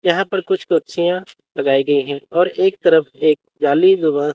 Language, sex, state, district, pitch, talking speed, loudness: Hindi, male, Chandigarh, Chandigarh, 185 Hz, 180 wpm, -17 LUFS